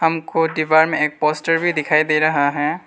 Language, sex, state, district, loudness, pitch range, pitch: Hindi, male, Arunachal Pradesh, Lower Dibang Valley, -17 LUFS, 150-165 Hz, 155 Hz